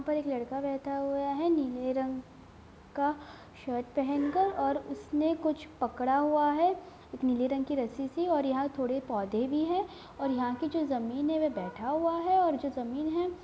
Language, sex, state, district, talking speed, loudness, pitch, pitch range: Hindi, female, Bihar, Gopalganj, 195 wpm, -31 LUFS, 280 Hz, 260-315 Hz